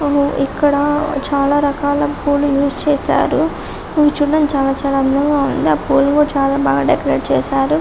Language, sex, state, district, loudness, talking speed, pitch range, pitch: Telugu, female, Telangana, Karimnagar, -15 LUFS, 145 wpm, 275-290 Hz, 285 Hz